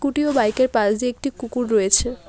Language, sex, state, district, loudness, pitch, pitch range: Bengali, female, West Bengal, Alipurduar, -20 LUFS, 245 Hz, 225-265 Hz